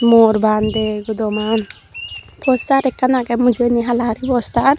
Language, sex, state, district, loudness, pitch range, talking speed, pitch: Chakma, female, Tripura, Dhalai, -16 LUFS, 220-250 Hz, 115 wpm, 235 Hz